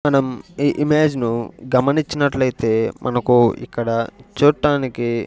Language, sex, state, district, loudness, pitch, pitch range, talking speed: Telugu, male, Andhra Pradesh, Sri Satya Sai, -19 LUFS, 125 Hz, 115-145 Hz, 100 wpm